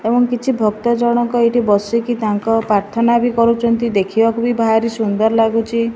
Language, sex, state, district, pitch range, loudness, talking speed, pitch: Odia, female, Odisha, Malkangiri, 220-235 Hz, -15 LUFS, 150 wpm, 230 Hz